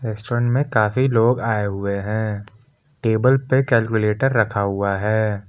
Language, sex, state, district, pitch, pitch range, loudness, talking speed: Hindi, male, Jharkhand, Palamu, 110 Hz, 105-125 Hz, -20 LUFS, 140 wpm